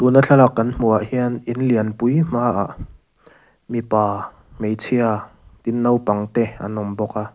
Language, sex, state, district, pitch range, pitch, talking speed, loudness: Mizo, male, Mizoram, Aizawl, 105-120 Hz, 115 Hz, 140 wpm, -19 LUFS